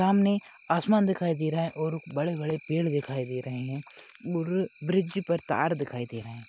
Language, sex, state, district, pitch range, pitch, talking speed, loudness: Hindi, male, Maharashtra, Chandrapur, 140-175 Hz, 160 Hz, 205 wpm, -29 LUFS